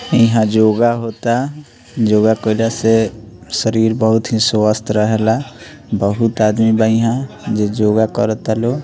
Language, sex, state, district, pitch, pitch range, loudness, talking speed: Bhojpuri, male, Bihar, Muzaffarpur, 110 Hz, 110-115 Hz, -15 LUFS, 130 wpm